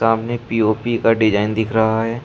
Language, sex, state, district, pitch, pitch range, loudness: Hindi, male, Uttar Pradesh, Shamli, 115 Hz, 110-115 Hz, -18 LUFS